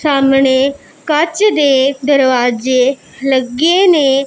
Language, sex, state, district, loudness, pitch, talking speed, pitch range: Punjabi, female, Punjab, Pathankot, -12 LUFS, 275 Hz, 85 wpm, 265-300 Hz